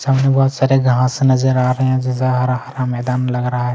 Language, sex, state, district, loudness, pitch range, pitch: Hindi, male, Chhattisgarh, Kabirdham, -16 LUFS, 125-130 Hz, 130 Hz